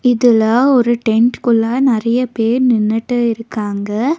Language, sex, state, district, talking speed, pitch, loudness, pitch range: Tamil, female, Tamil Nadu, Nilgiris, 100 wpm, 235 Hz, -14 LUFS, 225-245 Hz